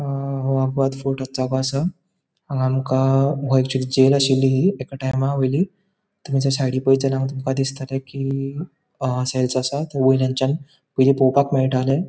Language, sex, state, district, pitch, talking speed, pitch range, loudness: Konkani, male, Goa, North and South Goa, 135 Hz, 115 wpm, 130-140 Hz, -20 LUFS